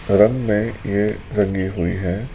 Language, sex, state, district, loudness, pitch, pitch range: Hindi, male, Rajasthan, Jaipur, -20 LUFS, 105 Hz, 95-105 Hz